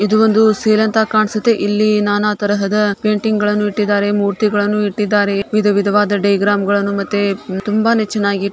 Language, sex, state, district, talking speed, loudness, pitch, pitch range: Kannada, female, Karnataka, Shimoga, 140 wpm, -15 LUFS, 205 Hz, 200-215 Hz